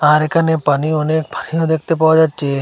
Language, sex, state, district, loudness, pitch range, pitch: Bengali, male, Assam, Hailakandi, -15 LUFS, 150-160 Hz, 155 Hz